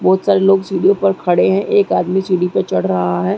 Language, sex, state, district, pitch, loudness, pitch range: Hindi, female, Chhattisgarh, Raigarh, 190 Hz, -15 LUFS, 180-195 Hz